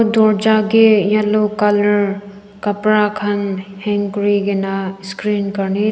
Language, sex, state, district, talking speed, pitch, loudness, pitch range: Nagamese, female, Nagaland, Dimapur, 100 wpm, 205 Hz, -16 LUFS, 200-210 Hz